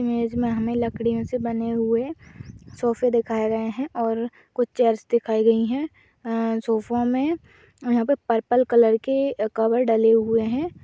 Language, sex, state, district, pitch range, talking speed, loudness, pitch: Hindi, female, Uttar Pradesh, Budaun, 225-245 Hz, 160 wpm, -22 LUFS, 235 Hz